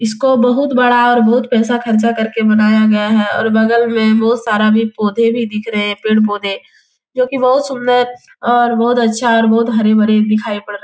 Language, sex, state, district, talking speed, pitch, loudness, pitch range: Hindi, female, Bihar, Jahanabad, 200 wpm, 225 Hz, -13 LUFS, 215-240 Hz